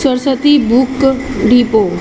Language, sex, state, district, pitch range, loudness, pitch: Hindi, female, Chhattisgarh, Bilaspur, 240-270 Hz, -12 LUFS, 260 Hz